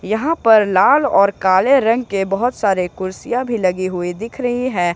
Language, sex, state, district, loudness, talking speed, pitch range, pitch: Hindi, male, Jharkhand, Ranchi, -16 LUFS, 195 wpm, 185-245 Hz, 215 Hz